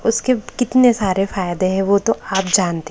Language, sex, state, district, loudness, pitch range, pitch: Hindi, male, Maharashtra, Gondia, -17 LUFS, 185-230 Hz, 195 Hz